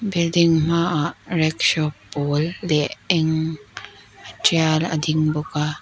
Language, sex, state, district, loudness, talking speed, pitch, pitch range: Mizo, female, Mizoram, Aizawl, -20 LUFS, 125 wpm, 160 Hz, 150-170 Hz